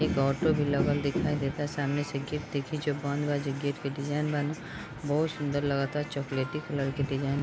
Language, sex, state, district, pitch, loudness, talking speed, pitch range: Bhojpuri, female, Bihar, Gopalganj, 145 Hz, -30 LUFS, 225 wpm, 140-150 Hz